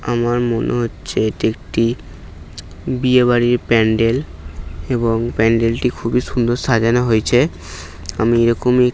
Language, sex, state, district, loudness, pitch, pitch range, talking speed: Bengali, male, West Bengal, North 24 Parganas, -17 LUFS, 115 Hz, 110-120 Hz, 100 wpm